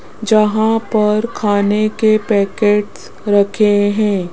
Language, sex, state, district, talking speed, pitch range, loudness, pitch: Hindi, female, Rajasthan, Jaipur, 110 wpm, 205-215 Hz, -14 LUFS, 210 Hz